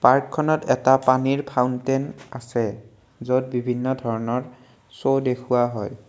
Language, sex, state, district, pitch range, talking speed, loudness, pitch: Assamese, male, Assam, Kamrup Metropolitan, 120-130 Hz, 110 wpm, -22 LUFS, 125 Hz